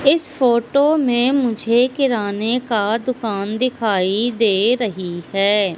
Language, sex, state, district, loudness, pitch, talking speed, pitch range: Hindi, female, Madhya Pradesh, Katni, -18 LUFS, 235 Hz, 115 wpm, 205-255 Hz